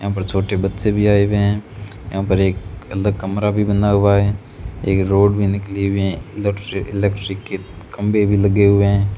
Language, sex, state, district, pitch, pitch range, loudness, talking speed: Hindi, male, Rajasthan, Bikaner, 100 Hz, 95-100 Hz, -18 LUFS, 205 wpm